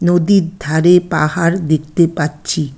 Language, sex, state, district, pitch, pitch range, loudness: Bengali, female, West Bengal, Alipurduar, 170 Hz, 155-175 Hz, -14 LUFS